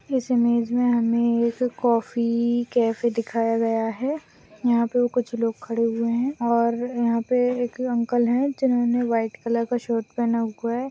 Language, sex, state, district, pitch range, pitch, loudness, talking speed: Hindi, female, Chhattisgarh, Balrampur, 230-245 Hz, 235 Hz, -23 LUFS, 170 wpm